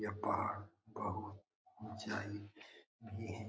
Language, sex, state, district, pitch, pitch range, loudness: Hindi, male, Bihar, Jamui, 105 Hz, 105-110 Hz, -44 LUFS